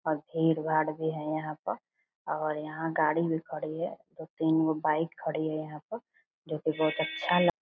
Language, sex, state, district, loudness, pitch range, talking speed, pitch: Hindi, female, Bihar, Purnia, -31 LUFS, 155-160 Hz, 205 wpm, 155 Hz